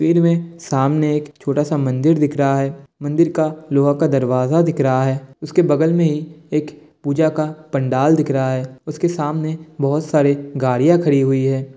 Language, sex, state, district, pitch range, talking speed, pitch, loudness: Hindi, male, Bihar, Kishanganj, 135-155 Hz, 190 wpm, 150 Hz, -18 LUFS